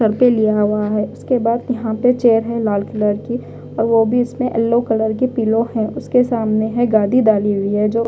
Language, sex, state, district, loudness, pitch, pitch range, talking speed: Hindi, female, Bihar, Katihar, -17 LUFS, 225 Hz, 215-240 Hz, 230 wpm